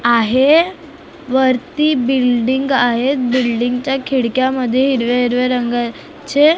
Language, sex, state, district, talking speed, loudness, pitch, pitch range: Marathi, female, Maharashtra, Mumbai Suburban, 100 wpm, -15 LUFS, 260 Hz, 245-280 Hz